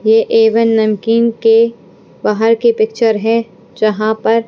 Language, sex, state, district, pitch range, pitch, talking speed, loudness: Hindi, female, Punjab, Pathankot, 220-230 Hz, 225 Hz, 145 wpm, -13 LUFS